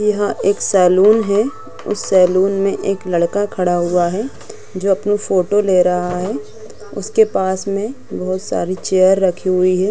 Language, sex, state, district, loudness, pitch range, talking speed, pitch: Hindi, female, Chhattisgarh, Rajnandgaon, -16 LUFS, 180-205 Hz, 170 wpm, 190 Hz